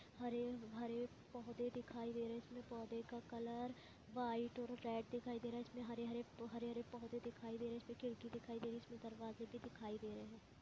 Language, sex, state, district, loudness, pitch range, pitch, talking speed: Hindi, female, Chhattisgarh, Raigarh, -49 LUFS, 230-240 Hz, 235 Hz, 215 wpm